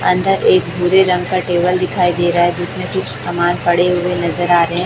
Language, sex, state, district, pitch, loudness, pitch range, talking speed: Hindi, female, Chhattisgarh, Raipur, 175 Hz, -15 LUFS, 175-180 Hz, 220 wpm